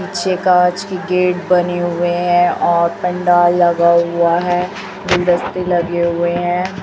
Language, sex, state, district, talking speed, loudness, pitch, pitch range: Hindi, male, Chhattisgarh, Raipur, 140 wpm, -15 LUFS, 175 Hz, 175-180 Hz